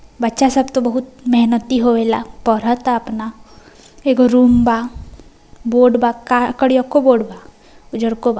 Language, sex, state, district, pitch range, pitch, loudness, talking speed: Hindi, female, Bihar, East Champaran, 230-255 Hz, 245 Hz, -15 LUFS, 155 wpm